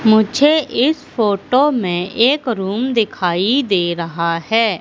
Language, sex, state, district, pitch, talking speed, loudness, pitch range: Hindi, female, Madhya Pradesh, Katni, 220 Hz, 125 wpm, -16 LUFS, 185-255 Hz